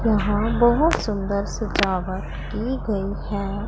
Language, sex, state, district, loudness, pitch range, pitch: Hindi, female, Punjab, Pathankot, -23 LUFS, 200-225 Hz, 205 Hz